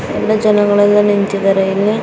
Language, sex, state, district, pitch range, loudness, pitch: Kannada, female, Karnataka, Raichur, 200-210 Hz, -13 LUFS, 205 Hz